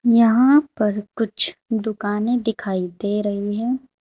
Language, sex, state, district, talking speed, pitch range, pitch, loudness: Hindi, female, Uttar Pradesh, Shamli, 120 wpm, 205-235 Hz, 220 Hz, -20 LUFS